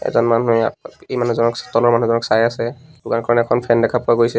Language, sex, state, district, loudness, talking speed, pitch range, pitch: Assamese, male, Assam, Sonitpur, -17 LUFS, 205 wpm, 115-120 Hz, 115 Hz